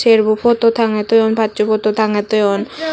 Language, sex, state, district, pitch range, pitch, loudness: Chakma, female, Tripura, West Tripura, 215-230 Hz, 220 Hz, -15 LUFS